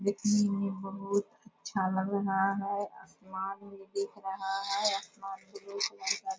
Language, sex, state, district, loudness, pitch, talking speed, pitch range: Hindi, female, Bihar, Purnia, -33 LUFS, 200 Hz, 140 wpm, 195-205 Hz